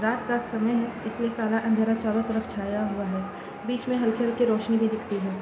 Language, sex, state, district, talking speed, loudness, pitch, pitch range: Hindi, female, Bihar, Gopalganj, 235 wpm, -27 LUFS, 225 Hz, 215-235 Hz